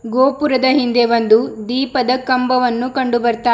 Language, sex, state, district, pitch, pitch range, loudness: Kannada, female, Karnataka, Bidar, 250 Hz, 240-260 Hz, -15 LUFS